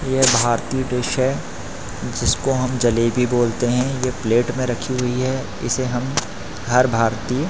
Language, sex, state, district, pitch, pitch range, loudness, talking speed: Hindi, male, Madhya Pradesh, Katni, 125 Hz, 120-130 Hz, -20 LUFS, 150 wpm